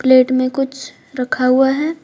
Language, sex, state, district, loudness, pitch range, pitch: Hindi, female, Jharkhand, Deoghar, -16 LUFS, 255-275 Hz, 265 Hz